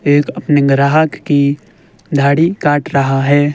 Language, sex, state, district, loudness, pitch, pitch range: Hindi, male, Himachal Pradesh, Shimla, -13 LUFS, 145 Hz, 140-150 Hz